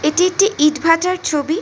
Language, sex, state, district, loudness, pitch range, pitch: Bengali, female, West Bengal, North 24 Parganas, -15 LUFS, 300-365 Hz, 330 Hz